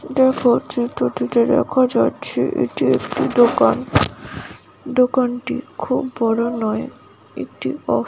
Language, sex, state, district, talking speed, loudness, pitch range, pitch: Bengali, female, West Bengal, Paschim Medinipur, 120 wpm, -19 LUFS, 235-260 Hz, 250 Hz